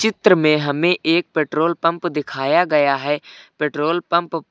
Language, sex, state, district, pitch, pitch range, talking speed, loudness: Hindi, male, Uttar Pradesh, Lucknow, 160 Hz, 150-170 Hz, 160 wpm, -18 LUFS